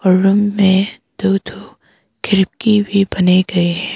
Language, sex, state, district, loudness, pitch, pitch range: Hindi, female, Arunachal Pradesh, Papum Pare, -15 LUFS, 195 Hz, 185-205 Hz